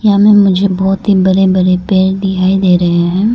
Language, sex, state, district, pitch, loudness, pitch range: Hindi, female, Arunachal Pradesh, Lower Dibang Valley, 190 Hz, -10 LUFS, 185-195 Hz